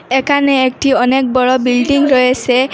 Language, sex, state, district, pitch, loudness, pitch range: Bengali, female, Assam, Hailakandi, 260 Hz, -12 LUFS, 255-275 Hz